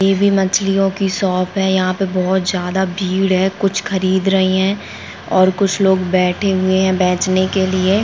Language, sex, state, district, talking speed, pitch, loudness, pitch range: Hindi, female, Uttarakhand, Tehri Garhwal, 180 wpm, 190 Hz, -16 LUFS, 185-195 Hz